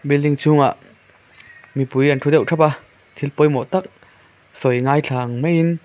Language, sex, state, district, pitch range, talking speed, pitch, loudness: Mizo, male, Mizoram, Aizawl, 135-155 Hz, 185 wpm, 145 Hz, -18 LUFS